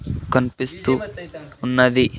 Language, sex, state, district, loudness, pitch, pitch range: Telugu, male, Andhra Pradesh, Sri Satya Sai, -20 LUFS, 130 Hz, 125-150 Hz